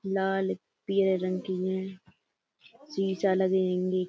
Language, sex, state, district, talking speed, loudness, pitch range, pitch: Hindi, female, Uttar Pradesh, Budaun, 115 wpm, -29 LUFS, 185-195 Hz, 190 Hz